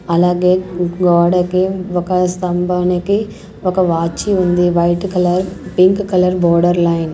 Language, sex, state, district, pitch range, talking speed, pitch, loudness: Telugu, female, Andhra Pradesh, Sri Satya Sai, 175-185 Hz, 120 wpm, 180 Hz, -15 LUFS